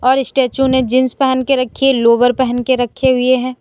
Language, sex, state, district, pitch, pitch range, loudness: Hindi, female, Uttar Pradesh, Lalitpur, 255 Hz, 250-265 Hz, -14 LUFS